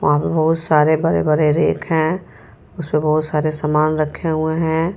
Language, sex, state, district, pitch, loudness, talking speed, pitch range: Hindi, female, Jharkhand, Ranchi, 155 Hz, -17 LUFS, 170 wpm, 150-160 Hz